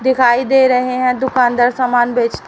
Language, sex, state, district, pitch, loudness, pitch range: Hindi, female, Haryana, Rohtak, 250 Hz, -14 LUFS, 245-260 Hz